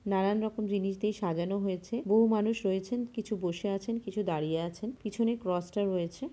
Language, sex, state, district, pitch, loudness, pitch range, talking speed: Bengali, female, West Bengal, Purulia, 205 Hz, -32 LUFS, 185-220 Hz, 180 wpm